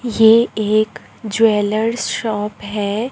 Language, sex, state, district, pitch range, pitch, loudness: Hindi, male, Chhattisgarh, Raipur, 210-225 Hz, 215 Hz, -17 LUFS